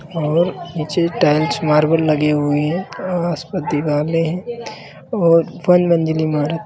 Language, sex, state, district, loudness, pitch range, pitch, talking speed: Hindi, male, Uttar Pradesh, Lalitpur, -17 LUFS, 150-175 Hz, 165 Hz, 115 wpm